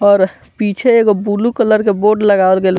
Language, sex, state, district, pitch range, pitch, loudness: Bhojpuri, male, Bihar, Muzaffarpur, 195-215 Hz, 205 Hz, -13 LUFS